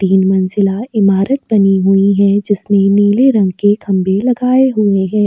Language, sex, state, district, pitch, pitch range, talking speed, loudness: Hindi, female, Bihar, Kishanganj, 200 Hz, 195-210 Hz, 160 wpm, -12 LUFS